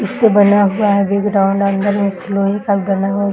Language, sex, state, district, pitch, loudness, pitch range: Hindi, female, Bihar, Darbhanga, 200 Hz, -14 LUFS, 195-205 Hz